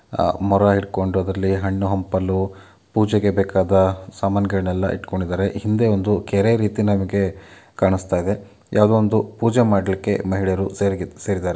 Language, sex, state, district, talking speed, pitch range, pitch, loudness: Kannada, male, Karnataka, Mysore, 125 wpm, 95-100 Hz, 100 Hz, -20 LUFS